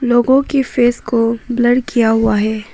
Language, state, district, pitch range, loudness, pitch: Hindi, Arunachal Pradesh, Papum Pare, 225-250 Hz, -14 LUFS, 240 Hz